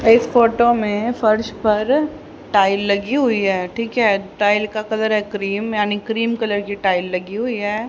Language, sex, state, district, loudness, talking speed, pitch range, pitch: Hindi, female, Haryana, Charkhi Dadri, -18 LUFS, 175 wpm, 205-230 Hz, 215 Hz